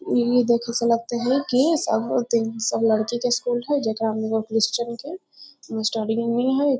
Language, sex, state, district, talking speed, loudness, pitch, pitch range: Maithili, female, Bihar, Muzaffarpur, 175 wpm, -22 LUFS, 235 Hz, 225-255 Hz